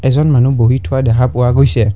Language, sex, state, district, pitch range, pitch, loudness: Assamese, male, Assam, Kamrup Metropolitan, 120-135 Hz, 125 Hz, -12 LUFS